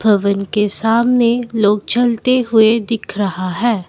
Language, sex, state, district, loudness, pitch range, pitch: Hindi, female, Assam, Kamrup Metropolitan, -15 LUFS, 205-235 Hz, 225 Hz